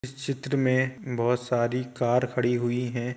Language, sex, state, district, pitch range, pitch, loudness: Hindi, male, Uttar Pradesh, Jyotiba Phule Nagar, 120-130 Hz, 125 Hz, -27 LUFS